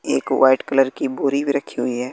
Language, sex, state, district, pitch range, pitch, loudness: Hindi, male, Bihar, West Champaran, 130-140 Hz, 135 Hz, -19 LUFS